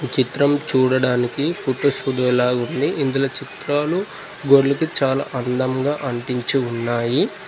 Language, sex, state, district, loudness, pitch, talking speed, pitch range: Telugu, male, Telangana, Mahabubabad, -20 LUFS, 135 Hz, 105 wpm, 125-145 Hz